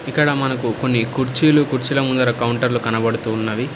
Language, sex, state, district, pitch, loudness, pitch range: Telugu, male, Telangana, Hyderabad, 130 Hz, -18 LUFS, 115-135 Hz